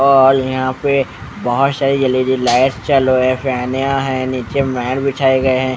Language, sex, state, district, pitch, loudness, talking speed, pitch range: Hindi, male, Bihar, West Champaran, 130 Hz, -15 LUFS, 175 wpm, 130-135 Hz